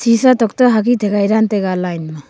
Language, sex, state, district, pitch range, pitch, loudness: Wancho, female, Arunachal Pradesh, Longding, 185-235 Hz, 215 Hz, -14 LUFS